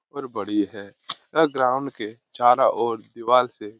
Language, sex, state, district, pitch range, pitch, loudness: Hindi, male, Bihar, Lakhisarai, 105-125 Hz, 120 Hz, -22 LUFS